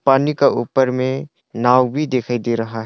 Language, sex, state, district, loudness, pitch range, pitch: Hindi, male, Arunachal Pradesh, Longding, -18 LUFS, 120-140 Hz, 130 Hz